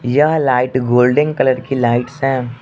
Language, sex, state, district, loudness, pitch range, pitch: Hindi, male, Arunachal Pradesh, Lower Dibang Valley, -15 LUFS, 125-135 Hz, 125 Hz